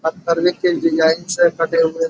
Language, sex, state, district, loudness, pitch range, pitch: Hindi, male, Uttar Pradesh, Budaun, -17 LUFS, 165-175 Hz, 165 Hz